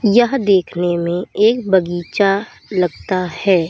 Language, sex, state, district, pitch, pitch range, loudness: Hindi, female, Uttar Pradesh, Lalitpur, 190 Hz, 175-205 Hz, -17 LUFS